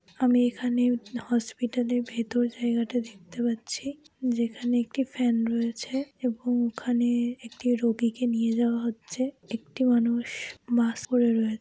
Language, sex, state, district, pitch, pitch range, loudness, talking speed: Bengali, female, West Bengal, Jalpaiguri, 240 Hz, 230-245 Hz, -27 LUFS, 130 wpm